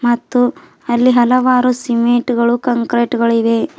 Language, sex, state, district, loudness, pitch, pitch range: Kannada, female, Karnataka, Bidar, -14 LUFS, 240 Hz, 235-250 Hz